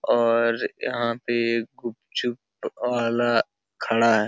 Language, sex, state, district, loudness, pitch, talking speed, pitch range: Hindi, male, Uttar Pradesh, Hamirpur, -24 LUFS, 115 Hz, 100 wpm, 115-120 Hz